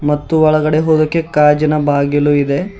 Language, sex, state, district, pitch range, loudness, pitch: Kannada, male, Karnataka, Bidar, 145-155 Hz, -13 LUFS, 150 Hz